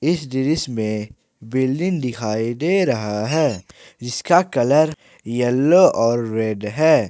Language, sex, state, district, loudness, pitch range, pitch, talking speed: Hindi, male, Jharkhand, Ranchi, -19 LUFS, 110-155 Hz, 125 Hz, 120 wpm